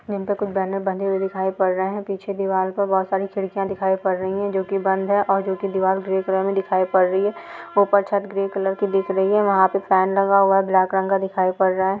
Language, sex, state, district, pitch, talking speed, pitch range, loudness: Hindi, female, Chhattisgarh, Korba, 195 Hz, 275 wpm, 190-195 Hz, -21 LUFS